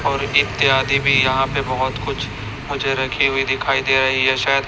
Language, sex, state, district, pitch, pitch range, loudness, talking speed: Hindi, male, Chhattisgarh, Raipur, 135 Hz, 130-135 Hz, -18 LUFS, 180 wpm